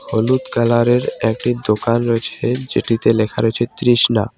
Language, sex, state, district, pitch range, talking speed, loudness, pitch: Bengali, male, West Bengal, Cooch Behar, 115-120 Hz, 135 wpm, -16 LUFS, 120 Hz